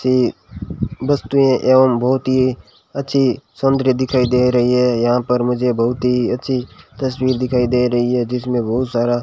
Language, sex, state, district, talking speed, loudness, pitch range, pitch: Hindi, male, Rajasthan, Bikaner, 170 wpm, -17 LUFS, 120-130 Hz, 125 Hz